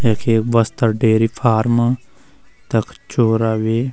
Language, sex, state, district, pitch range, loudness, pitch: Garhwali, male, Uttarakhand, Uttarkashi, 110-120 Hz, -17 LUFS, 115 Hz